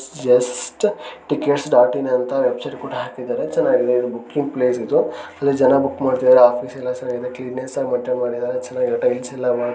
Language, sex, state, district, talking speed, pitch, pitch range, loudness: Kannada, male, Karnataka, Gulbarga, 165 wpm, 125 Hz, 125-140 Hz, -19 LUFS